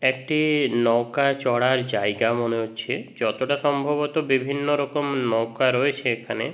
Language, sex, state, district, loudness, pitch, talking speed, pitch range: Bengali, male, West Bengal, Jhargram, -23 LUFS, 130 Hz, 145 wpm, 115-145 Hz